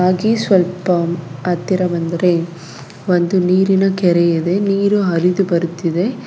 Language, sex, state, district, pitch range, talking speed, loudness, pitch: Kannada, female, Karnataka, Bangalore, 170-190 Hz, 105 wpm, -16 LUFS, 180 Hz